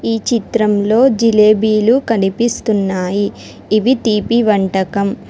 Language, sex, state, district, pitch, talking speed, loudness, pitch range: Telugu, female, Telangana, Hyderabad, 215 Hz, 80 wpm, -14 LUFS, 205-230 Hz